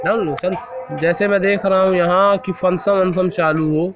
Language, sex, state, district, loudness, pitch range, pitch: Hindi, male, Madhya Pradesh, Katni, -17 LUFS, 175-200 Hz, 185 Hz